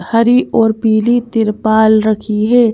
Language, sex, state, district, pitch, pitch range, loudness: Hindi, female, Madhya Pradesh, Bhopal, 220 Hz, 215-235 Hz, -12 LUFS